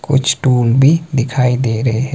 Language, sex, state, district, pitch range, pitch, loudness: Hindi, male, Himachal Pradesh, Shimla, 125-135 Hz, 130 Hz, -14 LUFS